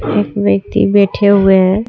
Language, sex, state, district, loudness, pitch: Hindi, female, Jharkhand, Deoghar, -12 LUFS, 190 Hz